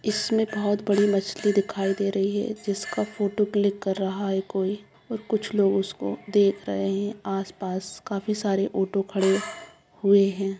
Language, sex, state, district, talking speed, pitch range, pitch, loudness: Hindi, female, Bihar, Jamui, 170 wpm, 195-210 Hz, 200 Hz, -25 LUFS